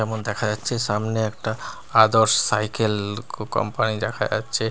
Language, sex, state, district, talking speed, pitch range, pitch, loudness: Bengali, male, Bihar, Katihar, 140 wpm, 105-115 Hz, 110 Hz, -22 LUFS